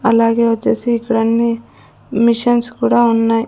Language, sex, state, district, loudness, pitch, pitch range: Telugu, female, Andhra Pradesh, Sri Satya Sai, -15 LUFS, 230 Hz, 230-235 Hz